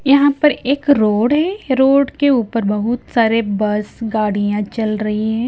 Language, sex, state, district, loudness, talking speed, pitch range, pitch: Hindi, female, Himachal Pradesh, Shimla, -16 LUFS, 165 wpm, 215-280 Hz, 230 Hz